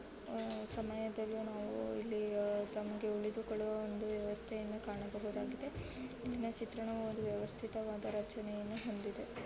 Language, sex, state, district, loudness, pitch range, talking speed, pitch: Kannada, female, Karnataka, Raichur, -42 LUFS, 210-220 Hz, 90 wpm, 215 Hz